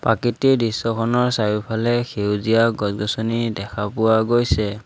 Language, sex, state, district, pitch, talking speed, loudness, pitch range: Assamese, male, Assam, Sonitpur, 115 Hz, 100 wpm, -20 LUFS, 105-120 Hz